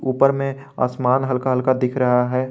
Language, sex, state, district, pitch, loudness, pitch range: Hindi, male, Jharkhand, Garhwa, 130 Hz, -19 LUFS, 125-130 Hz